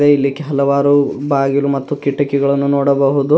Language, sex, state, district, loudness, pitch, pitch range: Kannada, male, Karnataka, Bidar, -15 LUFS, 140 Hz, 140-145 Hz